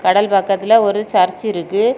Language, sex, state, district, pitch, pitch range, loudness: Tamil, female, Tamil Nadu, Kanyakumari, 205 Hz, 195-215 Hz, -15 LUFS